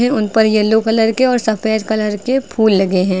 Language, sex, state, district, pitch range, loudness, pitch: Hindi, female, Uttar Pradesh, Lucknow, 210-225 Hz, -14 LUFS, 220 Hz